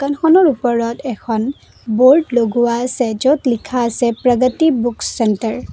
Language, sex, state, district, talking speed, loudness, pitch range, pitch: Assamese, female, Assam, Kamrup Metropolitan, 135 wpm, -15 LUFS, 235-265 Hz, 245 Hz